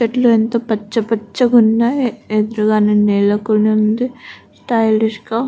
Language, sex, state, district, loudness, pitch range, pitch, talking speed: Telugu, female, Andhra Pradesh, Guntur, -15 LUFS, 215-235 Hz, 225 Hz, 130 wpm